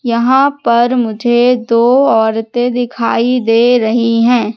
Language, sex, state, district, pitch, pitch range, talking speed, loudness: Hindi, female, Madhya Pradesh, Katni, 240 Hz, 230-245 Hz, 120 wpm, -12 LUFS